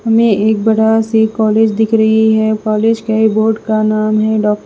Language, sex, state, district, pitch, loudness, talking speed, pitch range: Hindi, female, Bihar, West Champaran, 220 Hz, -12 LUFS, 195 wpm, 215-220 Hz